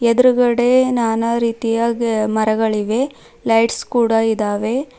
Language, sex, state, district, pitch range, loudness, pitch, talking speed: Kannada, female, Karnataka, Bidar, 225-240 Hz, -17 LUFS, 230 Hz, 95 wpm